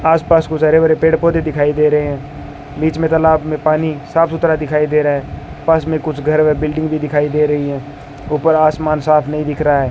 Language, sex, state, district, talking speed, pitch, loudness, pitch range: Hindi, male, Rajasthan, Bikaner, 210 wpm, 155 Hz, -15 LUFS, 150-160 Hz